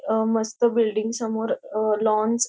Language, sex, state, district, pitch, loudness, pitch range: Marathi, female, Maharashtra, Dhule, 220 Hz, -23 LUFS, 215-230 Hz